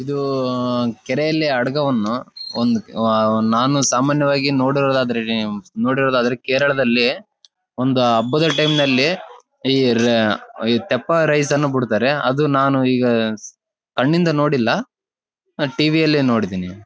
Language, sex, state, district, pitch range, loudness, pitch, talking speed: Kannada, male, Karnataka, Bellary, 120-150 Hz, -18 LUFS, 135 Hz, 95 wpm